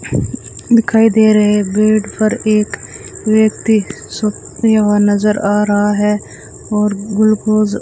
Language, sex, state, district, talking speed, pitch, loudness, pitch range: Hindi, female, Rajasthan, Bikaner, 130 wpm, 210 Hz, -13 LUFS, 205-215 Hz